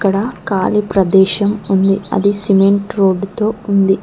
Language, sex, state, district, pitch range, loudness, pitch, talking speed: Telugu, female, Telangana, Mahabubabad, 195-205 Hz, -14 LUFS, 200 Hz, 135 wpm